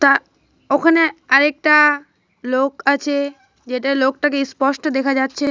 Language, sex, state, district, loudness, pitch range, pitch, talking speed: Bengali, female, Jharkhand, Jamtara, -17 LUFS, 270-295 Hz, 280 Hz, 110 wpm